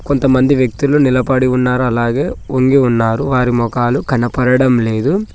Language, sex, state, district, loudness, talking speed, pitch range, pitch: Telugu, male, Telangana, Mahabubabad, -14 LUFS, 125 wpm, 120-135 Hz, 130 Hz